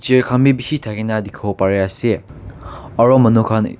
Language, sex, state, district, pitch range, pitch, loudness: Nagamese, male, Nagaland, Kohima, 100-130 Hz, 110 Hz, -16 LUFS